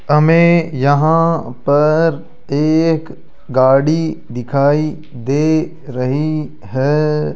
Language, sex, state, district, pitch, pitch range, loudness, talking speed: Hindi, male, Rajasthan, Jaipur, 150 Hz, 135-160 Hz, -15 LUFS, 75 wpm